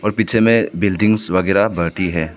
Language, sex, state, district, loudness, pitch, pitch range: Hindi, male, Arunachal Pradesh, Papum Pare, -16 LUFS, 100 Hz, 90-110 Hz